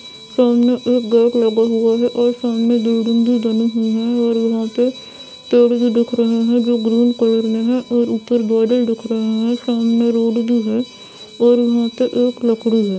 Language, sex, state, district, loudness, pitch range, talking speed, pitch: Hindi, female, Bihar, Saran, -16 LUFS, 230-240 Hz, 195 wpm, 235 Hz